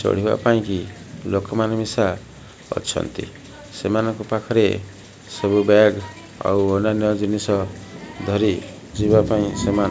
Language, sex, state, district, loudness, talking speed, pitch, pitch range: Odia, male, Odisha, Malkangiri, -20 LUFS, 105 wpm, 105 Hz, 100-110 Hz